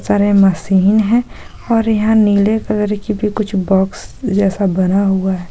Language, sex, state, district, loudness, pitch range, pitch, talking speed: Hindi, female, Jharkhand, Sahebganj, -14 LUFS, 190-215 Hz, 205 Hz, 165 wpm